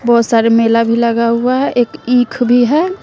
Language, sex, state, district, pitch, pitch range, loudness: Hindi, female, Bihar, West Champaran, 240 Hz, 230-250 Hz, -12 LUFS